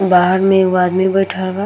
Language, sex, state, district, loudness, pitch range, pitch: Bhojpuri, female, Bihar, Gopalganj, -14 LUFS, 185-195 Hz, 190 Hz